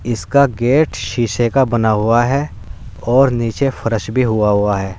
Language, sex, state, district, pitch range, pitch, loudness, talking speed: Hindi, male, Uttar Pradesh, Saharanpur, 110-130 Hz, 120 Hz, -15 LUFS, 170 wpm